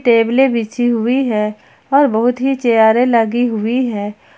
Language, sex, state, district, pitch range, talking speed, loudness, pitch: Hindi, female, Jharkhand, Ranchi, 220-255 Hz, 150 wpm, -15 LUFS, 235 Hz